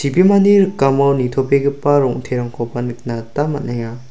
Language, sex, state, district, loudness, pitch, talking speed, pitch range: Garo, male, Meghalaya, South Garo Hills, -16 LUFS, 135 Hz, 100 wpm, 120-145 Hz